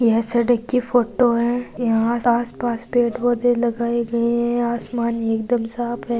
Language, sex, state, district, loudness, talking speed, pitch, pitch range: Hindi, female, Rajasthan, Churu, -19 LUFS, 155 wpm, 235 Hz, 235-240 Hz